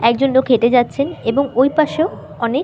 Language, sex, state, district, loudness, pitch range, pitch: Bengali, female, West Bengal, North 24 Parganas, -16 LUFS, 240-280 Hz, 265 Hz